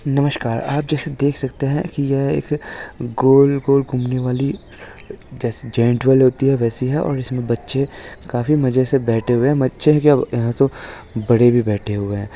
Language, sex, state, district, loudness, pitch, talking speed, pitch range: Hindi, male, Maharashtra, Solapur, -18 LUFS, 130 Hz, 185 wpm, 120-140 Hz